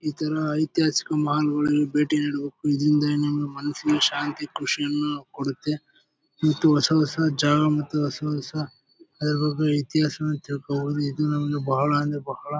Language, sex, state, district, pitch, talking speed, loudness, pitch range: Kannada, male, Karnataka, Bellary, 150 Hz, 150 wpm, -24 LUFS, 145-150 Hz